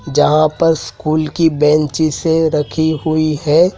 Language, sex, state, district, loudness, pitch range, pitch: Hindi, male, Madhya Pradesh, Dhar, -14 LUFS, 150-160 Hz, 155 Hz